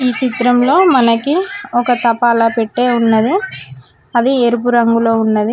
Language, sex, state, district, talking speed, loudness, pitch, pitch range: Telugu, female, Telangana, Mahabubabad, 110 wpm, -13 LUFS, 240 Hz, 230-250 Hz